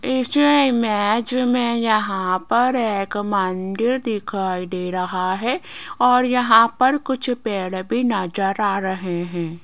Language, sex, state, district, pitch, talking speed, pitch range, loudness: Hindi, female, Rajasthan, Jaipur, 215 Hz, 130 wpm, 185-245 Hz, -20 LUFS